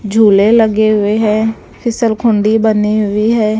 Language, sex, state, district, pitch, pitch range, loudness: Hindi, female, Bihar, West Champaran, 215 Hz, 210-225 Hz, -12 LUFS